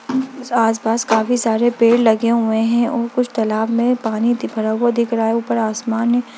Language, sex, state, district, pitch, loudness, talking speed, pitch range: Hindi, female, Bihar, Jamui, 235 Hz, -17 LUFS, 205 wpm, 225-240 Hz